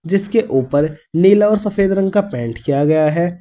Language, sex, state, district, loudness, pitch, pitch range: Hindi, male, Uttar Pradesh, Saharanpur, -16 LUFS, 175 Hz, 150-200 Hz